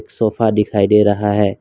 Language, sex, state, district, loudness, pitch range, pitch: Hindi, male, Assam, Kamrup Metropolitan, -15 LUFS, 105-110 Hz, 105 Hz